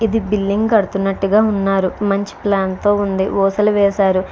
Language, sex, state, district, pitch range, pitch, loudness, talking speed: Telugu, female, Andhra Pradesh, Krishna, 195-210 Hz, 200 Hz, -16 LUFS, 125 wpm